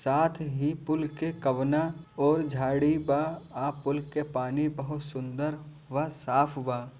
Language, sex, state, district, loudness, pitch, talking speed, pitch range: Bhojpuri, male, Bihar, Gopalganj, -29 LUFS, 150 Hz, 145 wpm, 135-155 Hz